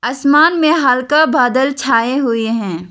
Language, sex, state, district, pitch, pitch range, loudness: Hindi, female, Arunachal Pradesh, Lower Dibang Valley, 260 Hz, 230-295 Hz, -13 LUFS